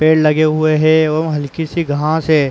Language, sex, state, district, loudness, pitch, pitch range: Hindi, male, Uttar Pradesh, Muzaffarnagar, -14 LUFS, 155 Hz, 155-160 Hz